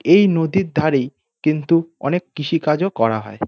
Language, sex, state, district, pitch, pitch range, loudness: Bengali, male, West Bengal, North 24 Parganas, 155 Hz, 140-175 Hz, -18 LUFS